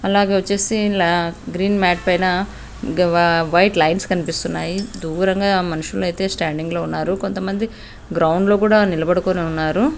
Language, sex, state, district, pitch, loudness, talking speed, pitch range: Telugu, female, Andhra Pradesh, Anantapur, 185 Hz, -18 LUFS, 120 wpm, 170-200 Hz